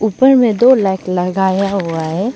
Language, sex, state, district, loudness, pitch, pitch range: Hindi, female, Arunachal Pradesh, Lower Dibang Valley, -13 LUFS, 195 Hz, 185-235 Hz